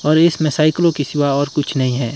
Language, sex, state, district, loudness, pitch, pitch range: Hindi, male, Himachal Pradesh, Shimla, -16 LUFS, 145 Hz, 140-155 Hz